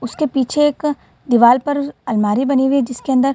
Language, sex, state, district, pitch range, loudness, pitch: Hindi, female, Bihar, Gaya, 240-285 Hz, -16 LUFS, 265 Hz